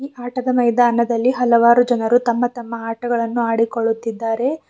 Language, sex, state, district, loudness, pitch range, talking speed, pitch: Kannada, female, Karnataka, Bidar, -18 LUFS, 230-245 Hz, 100 wpm, 235 Hz